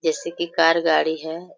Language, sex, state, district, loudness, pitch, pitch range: Hindi, female, Jharkhand, Sahebganj, -21 LUFS, 165 Hz, 160-170 Hz